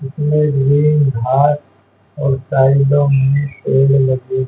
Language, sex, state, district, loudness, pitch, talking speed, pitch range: Hindi, male, Haryana, Charkhi Dadri, -14 LUFS, 135 Hz, 105 wpm, 130-145 Hz